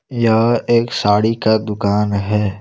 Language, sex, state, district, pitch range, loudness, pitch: Hindi, male, Jharkhand, Deoghar, 105-115 Hz, -16 LUFS, 110 Hz